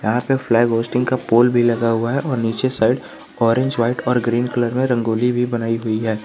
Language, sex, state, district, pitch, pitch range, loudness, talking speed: Hindi, male, Jharkhand, Garhwa, 120 Hz, 115-125 Hz, -18 LUFS, 230 wpm